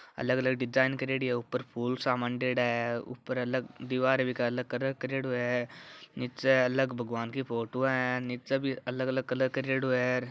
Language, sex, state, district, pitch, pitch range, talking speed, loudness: Marwari, male, Rajasthan, Churu, 125 Hz, 125-130 Hz, 185 wpm, -31 LUFS